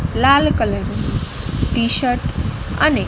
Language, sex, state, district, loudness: Gujarati, female, Gujarat, Gandhinagar, -17 LUFS